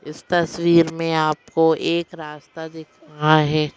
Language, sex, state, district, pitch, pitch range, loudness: Hindi, female, Madhya Pradesh, Bhopal, 160 Hz, 155-165 Hz, -19 LUFS